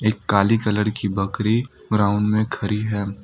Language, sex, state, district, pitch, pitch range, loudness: Hindi, male, Assam, Kamrup Metropolitan, 105 Hz, 100-110 Hz, -21 LUFS